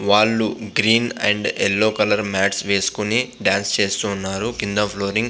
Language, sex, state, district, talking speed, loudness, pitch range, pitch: Telugu, male, Andhra Pradesh, Visakhapatnam, 135 wpm, -19 LUFS, 100-110 Hz, 105 Hz